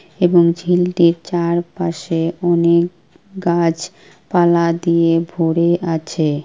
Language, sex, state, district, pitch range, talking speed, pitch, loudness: Bengali, female, West Bengal, Kolkata, 165-175 Hz, 85 wpm, 170 Hz, -16 LUFS